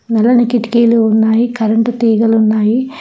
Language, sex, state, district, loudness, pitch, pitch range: Telugu, female, Telangana, Hyderabad, -12 LUFS, 230 Hz, 220-240 Hz